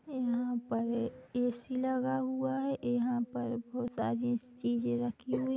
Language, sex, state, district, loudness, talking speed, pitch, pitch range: Hindi, female, Chhattisgarh, Bilaspur, -34 LUFS, 140 wpm, 245 Hz, 240-260 Hz